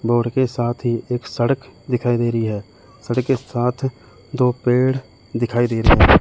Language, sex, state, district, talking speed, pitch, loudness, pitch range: Hindi, male, Chandigarh, Chandigarh, 175 wpm, 120 Hz, -20 LUFS, 115-125 Hz